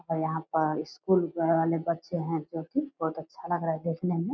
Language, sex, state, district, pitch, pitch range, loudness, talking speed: Hindi, female, Bihar, Purnia, 165 Hz, 160-170 Hz, -29 LUFS, 220 wpm